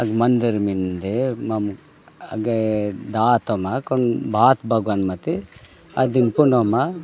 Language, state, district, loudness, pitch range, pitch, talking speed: Gondi, Chhattisgarh, Sukma, -20 LUFS, 105-130 Hz, 115 Hz, 100 wpm